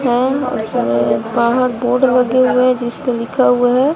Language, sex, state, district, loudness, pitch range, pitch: Hindi, female, Bihar, West Champaran, -15 LUFS, 240-255 Hz, 250 Hz